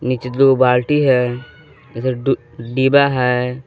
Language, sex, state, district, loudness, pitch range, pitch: Hindi, male, Jharkhand, Palamu, -16 LUFS, 125-135 Hz, 130 Hz